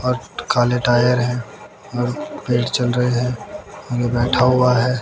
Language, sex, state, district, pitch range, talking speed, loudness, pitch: Hindi, male, Haryana, Jhajjar, 120-125 Hz, 130 wpm, -18 LUFS, 125 Hz